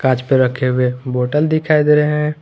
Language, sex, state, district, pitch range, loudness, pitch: Hindi, male, Jharkhand, Garhwa, 125-150 Hz, -15 LUFS, 135 Hz